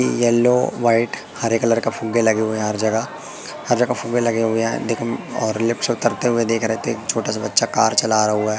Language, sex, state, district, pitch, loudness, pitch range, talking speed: Hindi, male, Madhya Pradesh, Katni, 115 Hz, -19 LUFS, 110-115 Hz, 240 wpm